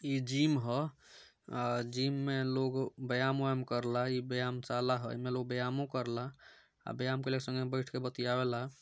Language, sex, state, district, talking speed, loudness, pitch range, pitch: Bhojpuri, male, Bihar, Gopalganj, 175 wpm, -35 LUFS, 125-130 Hz, 130 Hz